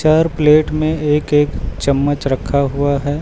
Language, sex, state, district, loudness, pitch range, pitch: Hindi, male, Uttar Pradesh, Lucknow, -15 LUFS, 140-155 Hz, 145 Hz